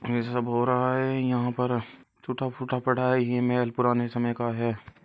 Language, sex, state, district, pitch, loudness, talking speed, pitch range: Hindi, male, Rajasthan, Churu, 125 Hz, -27 LUFS, 200 wpm, 120-130 Hz